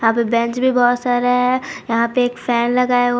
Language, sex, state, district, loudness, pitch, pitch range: Hindi, female, Jharkhand, Palamu, -17 LUFS, 245 Hz, 235-250 Hz